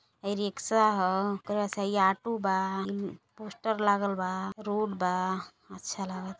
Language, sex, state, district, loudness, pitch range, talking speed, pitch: Hindi, female, Uttar Pradesh, Gorakhpur, -30 LUFS, 190-210 Hz, 140 wpm, 200 Hz